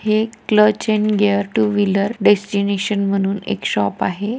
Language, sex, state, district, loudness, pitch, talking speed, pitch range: Marathi, female, Maharashtra, Pune, -17 LUFS, 205 Hz, 165 wpm, 200-215 Hz